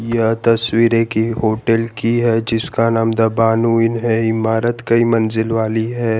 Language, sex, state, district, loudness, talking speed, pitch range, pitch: Hindi, male, Gujarat, Valsad, -16 LUFS, 165 wpm, 110-115 Hz, 115 Hz